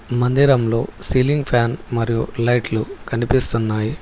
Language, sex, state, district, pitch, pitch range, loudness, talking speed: Telugu, male, Telangana, Hyderabad, 120 Hz, 115-130 Hz, -19 LUFS, 90 wpm